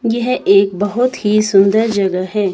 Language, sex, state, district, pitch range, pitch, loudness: Hindi, female, Himachal Pradesh, Shimla, 195-230 Hz, 205 Hz, -14 LUFS